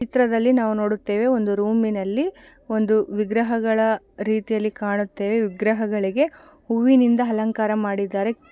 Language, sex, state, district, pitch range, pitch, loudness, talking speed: Kannada, female, Karnataka, Shimoga, 210-245 Hz, 220 Hz, -21 LUFS, 100 wpm